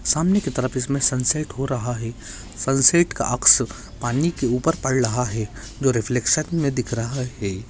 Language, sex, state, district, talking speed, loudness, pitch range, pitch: Hindi, male, Maharashtra, Aurangabad, 180 wpm, -21 LUFS, 115-140 Hz, 125 Hz